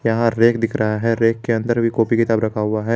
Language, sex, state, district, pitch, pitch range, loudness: Hindi, male, Jharkhand, Garhwa, 115 Hz, 110-115 Hz, -18 LUFS